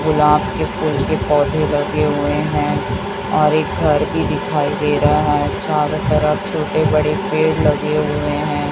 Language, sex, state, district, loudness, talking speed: Hindi, female, Chhattisgarh, Raipur, -17 LUFS, 165 wpm